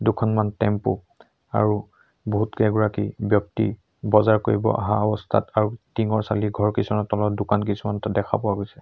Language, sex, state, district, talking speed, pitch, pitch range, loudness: Assamese, male, Assam, Sonitpur, 145 wpm, 105 Hz, 105-110 Hz, -23 LUFS